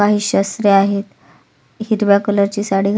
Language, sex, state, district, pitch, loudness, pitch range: Marathi, female, Maharashtra, Solapur, 205 Hz, -15 LUFS, 200-210 Hz